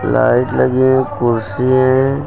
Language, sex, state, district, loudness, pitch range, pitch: Hindi, male, Uttar Pradesh, Lucknow, -14 LUFS, 90-130 Hz, 125 Hz